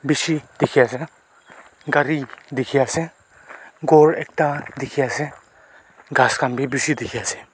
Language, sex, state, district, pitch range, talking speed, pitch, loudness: Nagamese, male, Nagaland, Kohima, 130-155 Hz, 135 wpm, 145 Hz, -20 LUFS